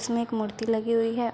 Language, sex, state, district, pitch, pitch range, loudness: Hindi, female, Bihar, Begusarai, 230 Hz, 225-235 Hz, -27 LUFS